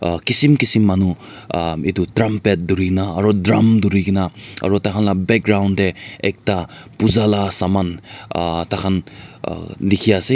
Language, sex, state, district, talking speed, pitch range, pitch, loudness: Nagamese, male, Nagaland, Dimapur, 145 wpm, 95-105 Hz, 100 Hz, -17 LUFS